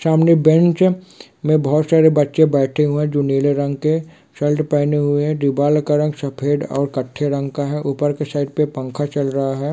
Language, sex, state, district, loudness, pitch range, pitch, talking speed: Hindi, male, Bihar, Kishanganj, -17 LUFS, 140-155 Hz, 145 Hz, 215 wpm